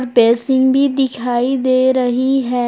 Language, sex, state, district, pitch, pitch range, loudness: Hindi, female, Jharkhand, Palamu, 255 Hz, 245-265 Hz, -15 LUFS